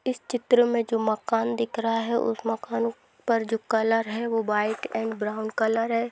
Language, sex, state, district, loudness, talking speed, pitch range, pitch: Hindi, female, Bihar, Sitamarhi, -26 LUFS, 195 wpm, 220-235 Hz, 225 Hz